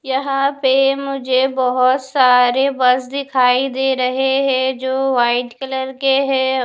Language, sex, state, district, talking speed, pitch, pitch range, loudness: Hindi, female, Punjab, Fazilka, 135 wpm, 265 Hz, 255-270 Hz, -16 LUFS